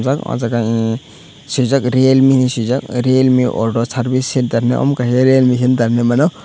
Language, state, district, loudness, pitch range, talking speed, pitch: Kokborok, Tripura, Dhalai, -14 LUFS, 120-130 Hz, 160 wpm, 125 Hz